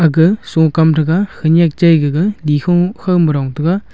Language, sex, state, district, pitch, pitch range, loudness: Wancho, male, Arunachal Pradesh, Longding, 165 Hz, 155-175 Hz, -13 LUFS